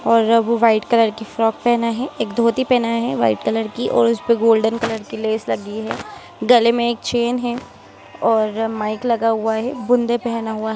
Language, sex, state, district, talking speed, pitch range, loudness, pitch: Hindi, female, Bihar, Sitamarhi, 205 wpm, 220-235 Hz, -18 LUFS, 230 Hz